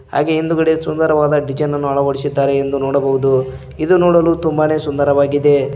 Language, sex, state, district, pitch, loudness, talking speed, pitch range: Kannada, male, Karnataka, Koppal, 145 Hz, -15 LUFS, 115 wpm, 140-160 Hz